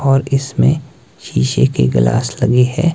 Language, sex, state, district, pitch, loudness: Hindi, male, Himachal Pradesh, Shimla, 125 Hz, -15 LUFS